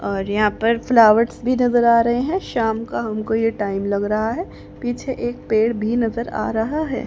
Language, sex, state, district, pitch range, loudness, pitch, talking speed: Hindi, female, Haryana, Jhajjar, 220-245 Hz, -19 LUFS, 230 Hz, 210 wpm